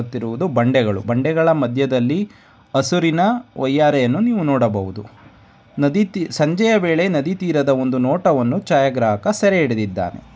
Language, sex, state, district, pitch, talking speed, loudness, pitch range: Kannada, male, Karnataka, Dharwad, 140 Hz, 110 wpm, -18 LUFS, 120-175 Hz